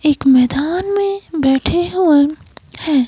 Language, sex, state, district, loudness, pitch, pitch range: Hindi, female, Himachal Pradesh, Shimla, -15 LUFS, 305 Hz, 275-355 Hz